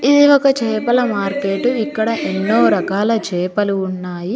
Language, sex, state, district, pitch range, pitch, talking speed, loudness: Telugu, female, Telangana, Nalgonda, 195-240 Hz, 215 Hz, 125 wpm, -16 LUFS